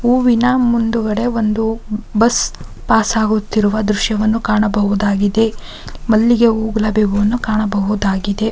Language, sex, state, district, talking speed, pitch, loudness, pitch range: Kannada, female, Karnataka, Mysore, 105 wpm, 215 Hz, -15 LUFS, 210-230 Hz